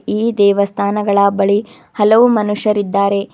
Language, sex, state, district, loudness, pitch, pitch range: Kannada, female, Karnataka, Bidar, -14 LUFS, 205 Hz, 200-215 Hz